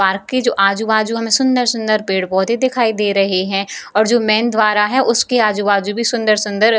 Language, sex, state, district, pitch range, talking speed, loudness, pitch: Hindi, female, Bihar, Jamui, 200-235 Hz, 195 wpm, -15 LUFS, 215 Hz